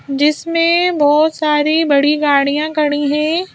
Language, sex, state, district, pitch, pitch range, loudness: Hindi, female, Madhya Pradesh, Bhopal, 300 Hz, 290-315 Hz, -14 LUFS